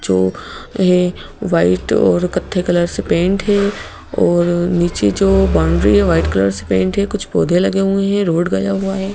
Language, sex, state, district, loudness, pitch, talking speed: Hindi, female, Madhya Pradesh, Bhopal, -15 LUFS, 175 Hz, 170 wpm